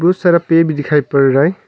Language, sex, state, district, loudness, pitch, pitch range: Hindi, male, Arunachal Pradesh, Longding, -13 LUFS, 160 Hz, 145-170 Hz